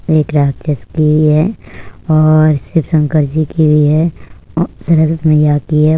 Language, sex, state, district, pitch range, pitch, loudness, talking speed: Hindi, female, Uttar Pradesh, Budaun, 150-160 Hz, 155 Hz, -12 LUFS, 170 wpm